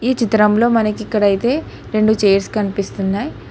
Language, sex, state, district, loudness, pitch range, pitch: Telugu, female, Telangana, Hyderabad, -16 LUFS, 200-225 Hz, 215 Hz